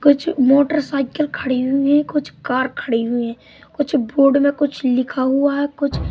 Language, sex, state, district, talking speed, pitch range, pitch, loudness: Hindi, male, Madhya Pradesh, Katni, 175 wpm, 255-290 Hz, 275 Hz, -18 LUFS